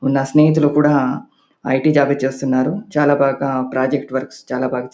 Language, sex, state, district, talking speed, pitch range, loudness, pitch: Telugu, male, Andhra Pradesh, Anantapur, 160 wpm, 130-145 Hz, -17 LUFS, 135 Hz